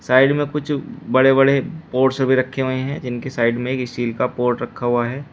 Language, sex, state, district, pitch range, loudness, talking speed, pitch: Hindi, male, Uttar Pradesh, Shamli, 125-135 Hz, -19 LUFS, 225 wpm, 130 Hz